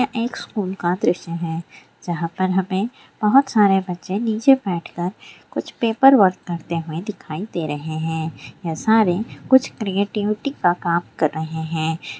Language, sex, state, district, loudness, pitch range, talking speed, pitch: Hindi, female, Bihar, Sitamarhi, -21 LUFS, 165-215 Hz, 155 wpm, 185 Hz